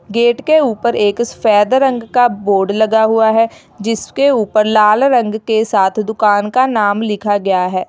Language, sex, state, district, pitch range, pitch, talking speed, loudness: Hindi, female, Uttar Pradesh, Lalitpur, 205-235 Hz, 220 Hz, 175 wpm, -13 LUFS